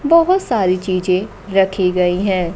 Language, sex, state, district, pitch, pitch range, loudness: Hindi, female, Bihar, Kaimur, 190 Hz, 185-210 Hz, -16 LUFS